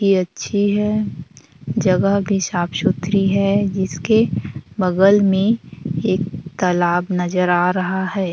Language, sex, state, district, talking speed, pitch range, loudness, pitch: Hindi, female, Chhattisgarh, Raigarh, 120 wpm, 180-200 Hz, -18 LUFS, 190 Hz